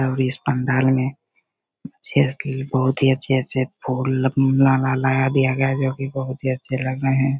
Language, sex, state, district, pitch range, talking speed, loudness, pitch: Hindi, male, Bihar, Begusarai, 130-135 Hz, 195 wpm, -20 LUFS, 130 Hz